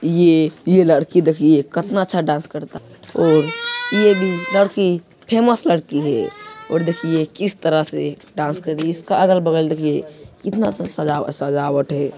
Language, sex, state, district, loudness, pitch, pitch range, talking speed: Hindi, male, Bihar, Jamui, -18 LUFS, 165 Hz, 150-190 Hz, 155 wpm